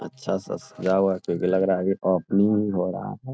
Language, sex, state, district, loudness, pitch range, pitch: Hindi, male, Bihar, Jamui, -24 LUFS, 90-100 Hz, 95 Hz